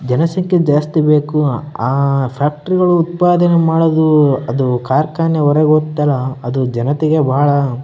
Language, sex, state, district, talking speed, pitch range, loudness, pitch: Kannada, male, Karnataka, Bellary, 130 wpm, 135-160 Hz, -14 LUFS, 150 Hz